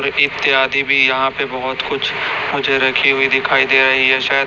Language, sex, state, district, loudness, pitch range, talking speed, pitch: Hindi, male, Chhattisgarh, Raipur, -14 LUFS, 130-140 Hz, 190 wpm, 135 Hz